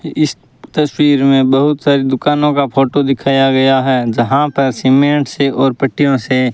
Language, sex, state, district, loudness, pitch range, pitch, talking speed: Hindi, male, Rajasthan, Bikaner, -13 LUFS, 135-145 Hz, 135 Hz, 175 wpm